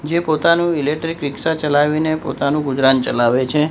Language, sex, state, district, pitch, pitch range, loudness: Gujarati, male, Gujarat, Gandhinagar, 150 Hz, 140-160 Hz, -17 LUFS